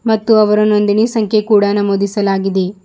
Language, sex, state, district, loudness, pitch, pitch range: Kannada, female, Karnataka, Bidar, -13 LUFS, 210 Hz, 200-215 Hz